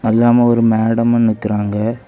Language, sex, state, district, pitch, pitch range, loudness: Tamil, male, Tamil Nadu, Kanyakumari, 115 Hz, 110-120 Hz, -14 LUFS